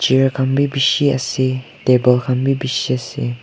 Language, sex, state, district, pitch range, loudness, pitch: Nagamese, male, Nagaland, Kohima, 125-135 Hz, -17 LUFS, 130 Hz